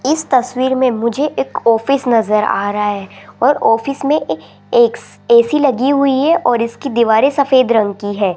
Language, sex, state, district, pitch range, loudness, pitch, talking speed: Hindi, female, Rajasthan, Jaipur, 225-280 Hz, -14 LUFS, 255 Hz, 180 wpm